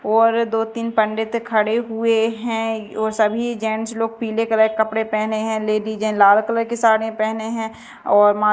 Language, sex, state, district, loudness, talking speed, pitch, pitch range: Hindi, female, Madhya Pradesh, Dhar, -19 LUFS, 170 wpm, 220 Hz, 220-225 Hz